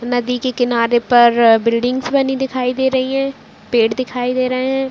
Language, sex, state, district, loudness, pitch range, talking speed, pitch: Hindi, female, Chhattisgarh, Raigarh, -16 LUFS, 240-260 Hz, 185 wpm, 250 Hz